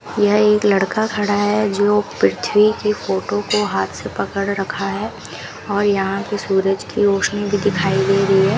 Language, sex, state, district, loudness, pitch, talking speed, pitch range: Hindi, female, Rajasthan, Bikaner, -18 LUFS, 200 Hz, 180 wpm, 195-205 Hz